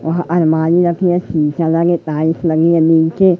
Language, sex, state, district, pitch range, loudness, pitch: Hindi, male, Madhya Pradesh, Katni, 160-175 Hz, -14 LUFS, 165 Hz